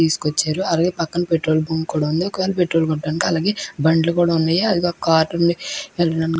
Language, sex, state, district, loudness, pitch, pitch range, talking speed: Telugu, female, Andhra Pradesh, Krishna, -19 LUFS, 165 Hz, 160-175 Hz, 195 wpm